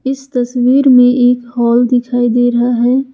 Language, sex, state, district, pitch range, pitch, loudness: Hindi, female, Jharkhand, Ranchi, 245-255 Hz, 245 Hz, -11 LUFS